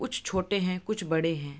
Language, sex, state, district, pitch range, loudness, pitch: Hindi, female, Bihar, East Champaran, 160-190 Hz, -29 LUFS, 185 Hz